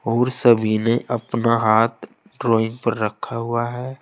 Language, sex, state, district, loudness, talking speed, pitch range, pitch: Hindi, male, Uttar Pradesh, Saharanpur, -20 LUFS, 150 wpm, 115-120 Hz, 115 Hz